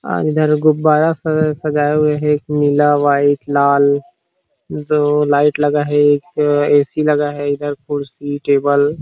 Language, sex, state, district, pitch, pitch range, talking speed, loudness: Hindi, male, Chhattisgarh, Rajnandgaon, 145 Hz, 145-150 Hz, 135 wpm, -15 LUFS